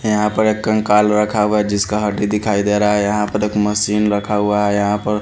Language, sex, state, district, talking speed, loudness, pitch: Hindi, male, Haryana, Rohtak, 250 wpm, -16 LUFS, 105 Hz